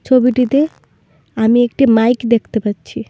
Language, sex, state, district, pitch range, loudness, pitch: Bengali, female, Tripura, Dhalai, 225-255 Hz, -14 LUFS, 240 Hz